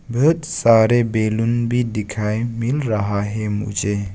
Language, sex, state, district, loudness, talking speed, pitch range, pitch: Hindi, male, Arunachal Pradesh, Lower Dibang Valley, -19 LUFS, 130 wpm, 105-120 Hz, 110 Hz